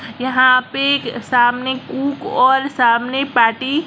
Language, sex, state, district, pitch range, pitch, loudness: Hindi, female, Gujarat, Gandhinagar, 240-275 Hz, 260 Hz, -16 LUFS